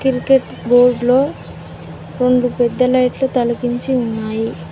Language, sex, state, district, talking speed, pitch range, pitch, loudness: Telugu, female, Telangana, Mahabubabad, 115 wpm, 240-255 Hz, 250 Hz, -16 LUFS